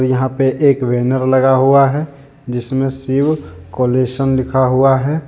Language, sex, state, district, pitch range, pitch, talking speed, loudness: Hindi, male, Jharkhand, Deoghar, 130-140 Hz, 130 Hz, 145 wpm, -14 LUFS